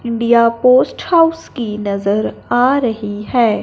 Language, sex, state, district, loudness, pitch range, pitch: Hindi, male, Punjab, Fazilka, -15 LUFS, 210-250 Hz, 230 Hz